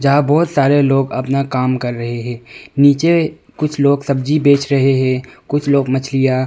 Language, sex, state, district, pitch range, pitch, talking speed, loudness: Hindi, male, Arunachal Pradesh, Longding, 130-145 Hz, 140 Hz, 175 wpm, -15 LUFS